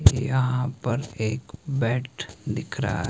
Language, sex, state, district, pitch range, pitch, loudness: Hindi, male, Himachal Pradesh, Shimla, 120-130 Hz, 125 Hz, -27 LUFS